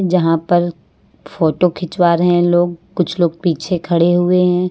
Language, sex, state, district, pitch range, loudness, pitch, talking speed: Hindi, female, Uttar Pradesh, Lucknow, 170-180 Hz, -15 LUFS, 175 Hz, 165 wpm